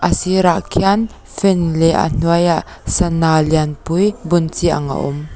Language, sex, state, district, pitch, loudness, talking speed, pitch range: Mizo, female, Mizoram, Aizawl, 170 Hz, -16 LUFS, 155 wpm, 160-185 Hz